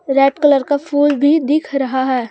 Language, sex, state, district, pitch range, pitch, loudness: Hindi, female, Chhattisgarh, Raipur, 270-290 Hz, 285 Hz, -15 LUFS